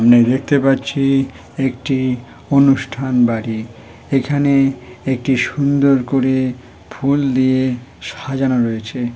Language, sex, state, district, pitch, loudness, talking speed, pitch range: Bengali, male, West Bengal, Malda, 130 Hz, -17 LUFS, 90 wpm, 120-135 Hz